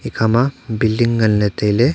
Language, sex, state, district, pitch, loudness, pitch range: Wancho, male, Arunachal Pradesh, Longding, 115 Hz, -17 LUFS, 110-120 Hz